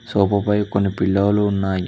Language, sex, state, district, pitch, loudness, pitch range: Telugu, male, Telangana, Mahabubabad, 100 Hz, -19 LUFS, 95-105 Hz